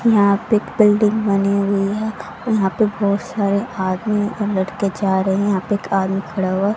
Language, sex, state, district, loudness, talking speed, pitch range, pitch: Hindi, female, Haryana, Rohtak, -18 LUFS, 205 wpm, 195-210 Hz, 200 Hz